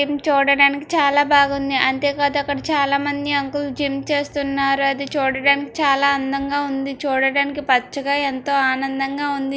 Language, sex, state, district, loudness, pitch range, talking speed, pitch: Telugu, female, Andhra Pradesh, Srikakulam, -19 LUFS, 275-285 Hz, 130 wpm, 280 Hz